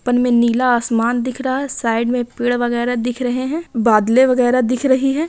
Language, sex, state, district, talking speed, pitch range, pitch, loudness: Hindi, female, Bihar, Kishanganj, 225 wpm, 240-260 Hz, 245 Hz, -17 LUFS